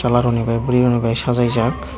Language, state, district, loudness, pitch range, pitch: Kokborok, Tripura, Dhalai, -17 LUFS, 115-120 Hz, 120 Hz